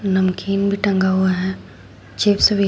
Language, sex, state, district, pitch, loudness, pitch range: Hindi, female, Uttar Pradesh, Shamli, 190 Hz, -18 LUFS, 185-200 Hz